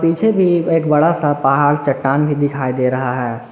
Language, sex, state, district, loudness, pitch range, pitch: Hindi, male, Jharkhand, Garhwa, -15 LUFS, 135-165 Hz, 145 Hz